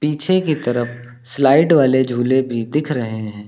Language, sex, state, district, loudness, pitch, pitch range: Hindi, male, Uttar Pradesh, Lucknow, -17 LUFS, 130 Hz, 120-150 Hz